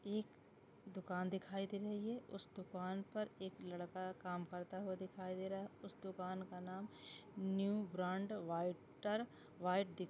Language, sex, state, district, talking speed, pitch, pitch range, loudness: Hindi, male, Chhattisgarh, Rajnandgaon, 160 wpm, 190 Hz, 185-200 Hz, -46 LUFS